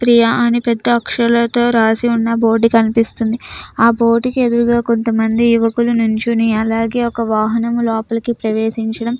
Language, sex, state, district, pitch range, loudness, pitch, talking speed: Telugu, female, Andhra Pradesh, Chittoor, 225-235 Hz, -15 LUFS, 230 Hz, 135 wpm